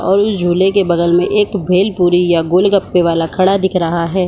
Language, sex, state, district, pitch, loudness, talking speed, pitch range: Hindi, female, Bihar, Supaul, 180 Hz, -13 LUFS, 210 wpm, 175-195 Hz